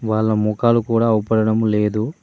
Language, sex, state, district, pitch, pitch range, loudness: Telugu, male, Telangana, Mahabubabad, 110 Hz, 105-115 Hz, -18 LUFS